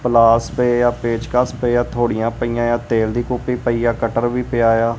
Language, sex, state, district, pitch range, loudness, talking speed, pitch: Punjabi, male, Punjab, Kapurthala, 115-120 Hz, -18 LUFS, 215 wpm, 120 Hz